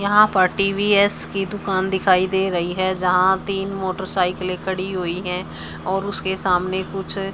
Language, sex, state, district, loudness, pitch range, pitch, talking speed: Hindi, male, Haryana, Charkhi Dadri, -20 LUFS, 185-195 Hz, 190 Hz, 155 wpm